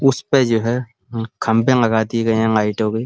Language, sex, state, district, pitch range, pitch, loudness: Hindi, male, Uttar Pradesh, Muzaffarnagar, 110-125 Hz, 115 Hz, -18 LUFS